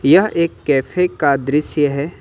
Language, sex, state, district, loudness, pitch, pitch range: Hindi, male, Uttar Pradesh, Lucknow, -17 LUFS, 145 Hz, 140-170 Hz